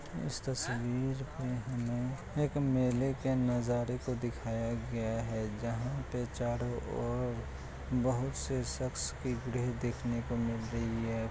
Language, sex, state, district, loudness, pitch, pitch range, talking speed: Hindi, male, Bihar, Kishanganj, -35 LUFS, 120 Hz, 115-130 Hz, 140 wpm